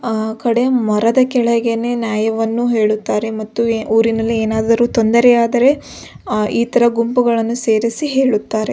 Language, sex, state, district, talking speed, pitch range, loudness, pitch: Kannada, female, Karnataka, Belgaum, 105 wpm, 220-240 Hz, -15 LUFS, 230 Hz